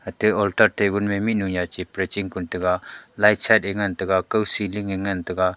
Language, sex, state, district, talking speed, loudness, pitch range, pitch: Wancho, male, Arunachal Pradesh, Longding, 205 wpm, -22 LUFS, 95-105 Hz, 100 Hz